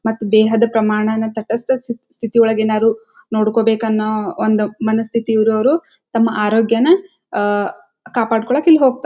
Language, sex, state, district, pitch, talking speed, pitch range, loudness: Kannada, female, Karnataka, Dharwad, 225 Hz, 105 wpm, 220-250 Hz, -16 LUFS